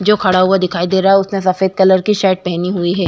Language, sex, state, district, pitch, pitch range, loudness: Hindi, female, Uttar Pradesh, Jyotiba Phule Nagar, 190 Hz, 185-195 Hz, -13 LUFS